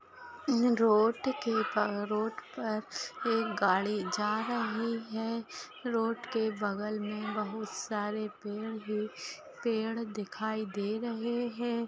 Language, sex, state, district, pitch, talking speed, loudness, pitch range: Hindi, female, Chhattisgarh, Kabirdham, 220 Hz, 110 wpm, -33 LUFS, 210-230 Hz